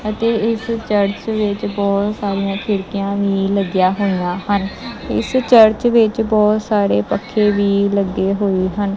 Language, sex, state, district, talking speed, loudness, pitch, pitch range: Punjabi, male, Punjab, Kapurthala, 140 wpm, -16 LUFS, 200 Hz, 195-215 Hz